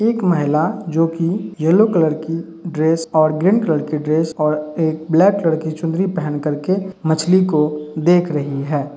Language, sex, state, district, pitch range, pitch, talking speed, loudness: Hindi, male, Uttar Pradesh, Hamirpur, 150-175 Hz, 160 Hz, 165 wpm, -17 LUFS